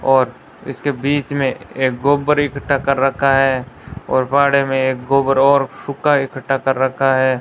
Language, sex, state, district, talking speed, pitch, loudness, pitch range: Hindi, male, Rajasthan, Bikaner, 170 wpm, 135 Hz, -17 LUFS, 130-140 Hz